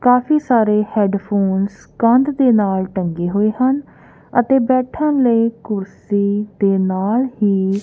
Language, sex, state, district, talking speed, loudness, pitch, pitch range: Punjabi, female, Punjab, Kapurthala, 130 wpm, -17 LUFS, 210 Hz, 195-250 Hz